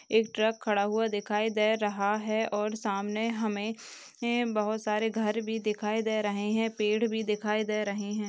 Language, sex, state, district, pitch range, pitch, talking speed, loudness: Hindi, female, Bihar, Madhepura, 210-225 Hz, 215 Hz, 190 wpm, -30 LUFS